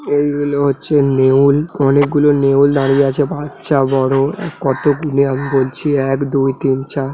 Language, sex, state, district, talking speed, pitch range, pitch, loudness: Bengali, male, West Bengal, Dakshin Dinajpur, 150 wpm, 135-145 Hz, 140 Hz, -14 LUFS